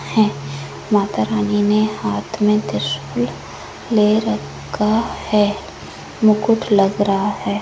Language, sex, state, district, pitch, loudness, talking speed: Hindi, female, Uttarakhand, Uttarkashi, 205 Hz, -18 LUFS, 110 wpm